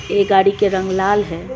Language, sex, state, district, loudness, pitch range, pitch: Hindi, female, Tripura, West Tripura, -16 LUFS, 190-200 Hz, 195 Hz